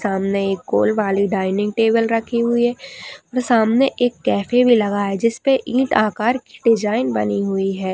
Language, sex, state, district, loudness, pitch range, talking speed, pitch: Hindi, female, Uttar Pradesh, Hamirpur, -18 LUFS, 200-245 Hz, 175 wpm, 225 Hz